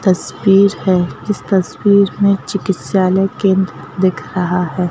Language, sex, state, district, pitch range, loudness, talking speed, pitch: Hindi, female, Madhya Pradesh, Bhopal, 180-195 Hz, -15 LUFS, 120 wpm, 190 Hz